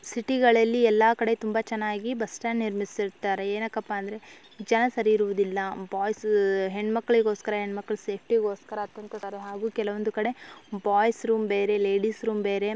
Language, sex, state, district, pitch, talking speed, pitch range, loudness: Kannada, female, Karnataka, Dharwad, 215 Hz, 140 wpm, 205-225 Hz, -26 LUFS